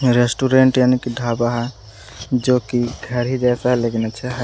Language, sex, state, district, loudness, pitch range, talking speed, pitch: Hindi, male, Jharkhand, Palamu, -18 LUFS, 120-125 Hz, 190 wpm, 120 Hz